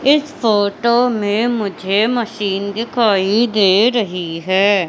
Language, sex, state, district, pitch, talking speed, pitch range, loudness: Hindi, female, Madhya Pradesh, Katni, 210 Hz, 110 wpm, 195-235 Hz, -16 LUFS